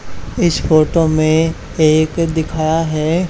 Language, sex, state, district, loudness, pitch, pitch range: Hindi, male, Haryana, Charkhi Dadri, -15 LUFS, 160 Hz, 155-165 Hz